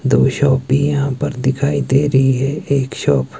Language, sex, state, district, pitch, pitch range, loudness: Hindi, male, Himachal Pradesh, Shimla, 140 Hz, 135-145 Hz, -16 LUFS